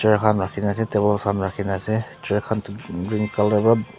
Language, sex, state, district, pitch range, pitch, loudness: Nagamese, male, Nagaland, Dimapur, 100-110 Hz, 105 Hz, -22 LUFS